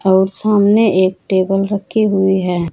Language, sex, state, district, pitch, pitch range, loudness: Hindi, female, Uttar Pradesh, Saharanpur, 190 Hz, 185-205 Hz, -14 LUFS